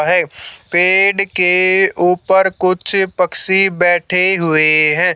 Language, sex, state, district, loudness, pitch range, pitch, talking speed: Hindi, male, Haryana, Jhajjar, -13 LUFS, 175-190 Hz, 180 Hz, 105 wpm